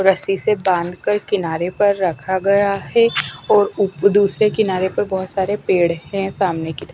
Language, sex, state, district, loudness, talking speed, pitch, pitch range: Hindi, female, Punjab, Kapurthala, -18 LUFS, 180 wpm, 195 Hz, 185-205 Hz